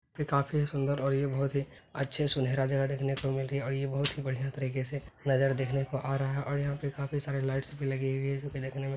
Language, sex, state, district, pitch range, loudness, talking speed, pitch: Hindi, male, Bihar, Purnia, 135-140 Hz, -31 LUFS, 290 wpm, 135 Hz